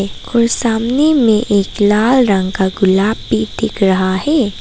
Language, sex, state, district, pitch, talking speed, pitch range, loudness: Hindi, female, Arunachal Pradesh, Papum Pare, 210 Hz, 155 wpm, 190-235 Hz, -14 LUFS